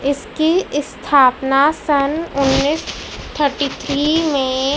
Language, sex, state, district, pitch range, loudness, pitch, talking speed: Hindi, male, Madhya Pradesh, Dhar, 275-300 Hz, -17 LUFS, 285 Hz, 90 wpm